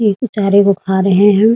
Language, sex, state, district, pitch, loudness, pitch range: Hindi, female, Bihar, Muzaffarpur, 200 Hz, -12 LUFS, 195-210 Hz